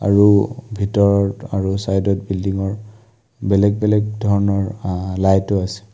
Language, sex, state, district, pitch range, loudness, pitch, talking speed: Assamese, male, Assam, Kamrup Metropolitan, 95-105 Hz, -18 LUFS, 100 Hz, 100 wpm